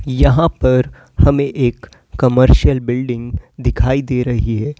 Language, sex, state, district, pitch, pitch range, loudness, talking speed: Hindi, male, Uttar Pradesh, Lalitpur, 125 Hz, 120-135 Hz, -15 LUFS, 125 wpm